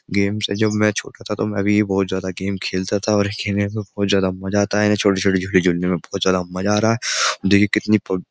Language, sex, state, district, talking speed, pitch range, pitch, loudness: Hindi, male, Uttar Pradesh, Jyotiba Phule Nagar, 260 wpm, 95-105 Hz, 100 Hz, -19 LUFS